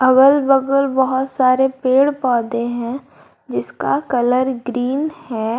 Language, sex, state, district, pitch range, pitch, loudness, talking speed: Hindi, female, Jharkhand, Garhwa, 245-270 Hz, 260 Hz, -17 LUFS, 120 wpm